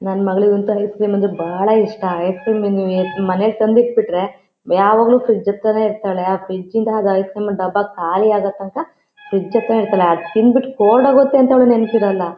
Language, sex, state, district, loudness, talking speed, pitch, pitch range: Kannada, female, Karnataka, Shimoga, -15 LUFS, 175 wpm, 205 Hz, 190-225 Hz